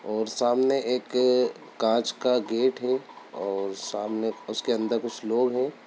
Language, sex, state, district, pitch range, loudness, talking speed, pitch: Hindi, male, Bihar, Sitamarhi, 110-125 Hz, -26 LUFS, 145 wpm, 120 Hz